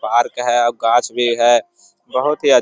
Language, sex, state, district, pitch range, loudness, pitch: Hindi, male, Bihar, Jamui, 120-125 Hz, -16 LUFS, 120 Hz